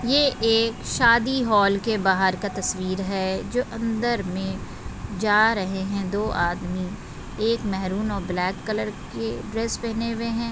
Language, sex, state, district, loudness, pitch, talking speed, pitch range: Hindi, female, Chhattisgarh, Bastar, -24 LUFS, 210 Hz, 155 wpm, 190-230 Hz